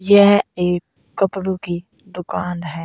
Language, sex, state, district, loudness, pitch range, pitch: Hindi, female, Uttar Pradesh, Saharanpur, -19 LUFS, 175-195 Hz, 180 Hz